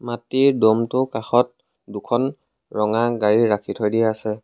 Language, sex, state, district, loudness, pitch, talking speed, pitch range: Assamese, male, Assam, Sonitpur, -20 LUFS, 115 Hz, 135 wpm, 110-120 Hz